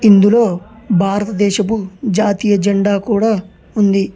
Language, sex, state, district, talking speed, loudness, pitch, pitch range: Telugu, male, Telangana, Hyderabad, 85 wpm, -14 LUFS, 205 Hz, 195-215 Hz